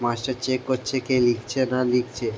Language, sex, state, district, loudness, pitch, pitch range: Bengali, male, West Bengal, Jhargram, -23 LUFS, 125 Hz, 120-130 Hz